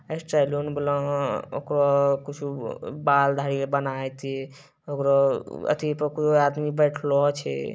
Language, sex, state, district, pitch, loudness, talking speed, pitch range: Maithili, male, Bihar, Bhagalpur, 145 Hz, -24 LUFS, 130 wpm, 140-150 Hz